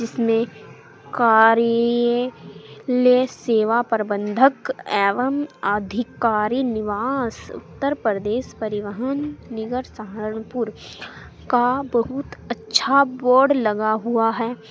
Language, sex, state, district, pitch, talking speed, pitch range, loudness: Hindi, female, Uttar Pradesh, Saharanpur, 235 Hz, 80 wpm, 220-255 Hz, -20 LUFS